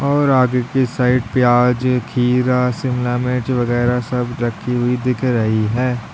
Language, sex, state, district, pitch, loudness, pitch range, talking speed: Hindi, male, Uttar Pradesh, Lalitpur, 125 Hz, -17 LUFS, 120-125 Hz, 145 wpm